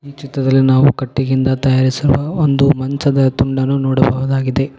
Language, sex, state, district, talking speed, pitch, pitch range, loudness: Kannada, male, Karnataka, Koppal, 115 wpm, 135 Hz, 130-140 Hz, -14 LUFS